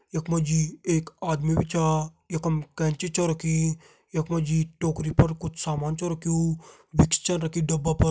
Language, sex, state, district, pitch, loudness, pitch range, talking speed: Garhwali, male, Uttarakhand, Tehri Garhwal, 160 Hz, -26 LUFS, 155-165 Hz, 185 wpm